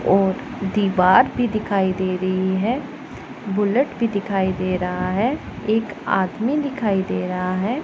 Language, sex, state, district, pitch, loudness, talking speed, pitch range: Hindi, male, Punjab, Pathankot, 200 Hz, -21 LUFS, 145 wpm, 185-235 Hz